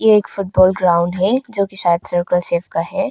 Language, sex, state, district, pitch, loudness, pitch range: Hindi, female, Arunachal Pradesh, Longding, 185 Hz, -16 LUFS, 175-205 Hz